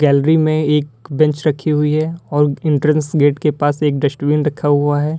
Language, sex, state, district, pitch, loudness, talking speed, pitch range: Hindi, male, Uttar Pradesh, Lalitpur, 150 Hz, -16 LUFS, 195 wpm, 145-155 Hz